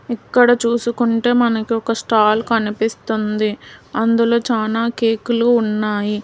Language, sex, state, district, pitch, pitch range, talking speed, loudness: Telugu, female, Telangana, Hyderabad, 230 Hz, 215-235 Hz, 95 wpm, -17 LUFS